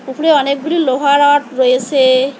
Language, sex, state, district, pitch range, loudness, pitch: Bengali, female, West Bengal, Alipurduar, 260-285 Hz, -12 LUFS, 275 Hz